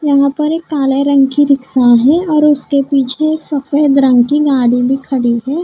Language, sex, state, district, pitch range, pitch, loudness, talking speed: Hindi, female, Maharashtra, Mumbai Suburban, 265-295 Hz, 280 Hz, -12 LUFS, 200 wpm